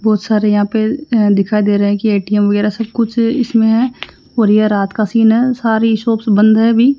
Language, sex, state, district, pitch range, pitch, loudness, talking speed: Hindi, female, Rajasthan, Jaipur, 210-230 Hz, 220 Hz, -13 LUFS, 225 wpm